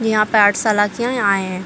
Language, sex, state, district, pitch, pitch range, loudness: Hindi, female, Chhattisgarh, Bilaspur, 210 Hz, 200-220 Hz, -16 LUFS